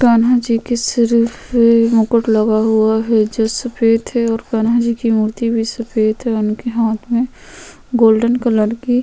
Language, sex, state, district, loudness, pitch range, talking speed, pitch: Hindi, female, Chhattisgarh, Sukma, -15 LUFS, 220-235 Hz, 165 wpm, 230 Hz